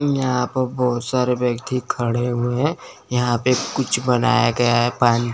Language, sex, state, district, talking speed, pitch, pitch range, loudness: Hindi, male, Chandigarh, Chandigarh, 170 wpm, 125 Hz, 120-125 Hz, -20 LUFS